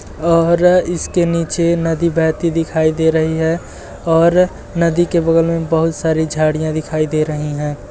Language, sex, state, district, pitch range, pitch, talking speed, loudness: Hindi, male, Uttar Pradesh, Etah, 160-170 Hz, 165 Hz, 160 wpm, -15 LUFS